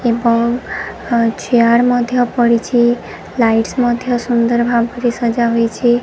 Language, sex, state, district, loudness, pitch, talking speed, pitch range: Odia, female, Odisha, Sambalpur, -15 LUFS, 235 Hz, 100 wpm, 235-245 Hz